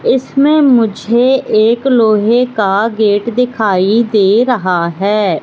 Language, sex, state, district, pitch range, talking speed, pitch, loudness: Hindi, female, Madhya Pradesh, Katni, 205-250 Hz, 110 wpm, 225 Hz, -11 LUFS